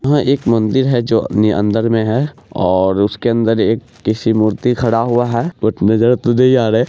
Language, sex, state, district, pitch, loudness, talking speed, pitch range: Hindi, male, Bihar, Araria, 115 Hz, -14 LUFS, 210 wpm, 110-125 Hz